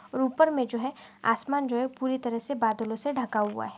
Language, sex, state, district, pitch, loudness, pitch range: Hindi, female, Maharashtra, Aurangabad, 250 Hz, -28 LUFS, 225-265 Hz